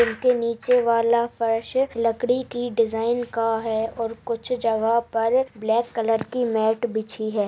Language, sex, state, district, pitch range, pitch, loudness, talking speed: Hindi, female, Bihar, Bhagalpur, 225-240 Hz, 230 Hz, -23 LUFS, 145 wpm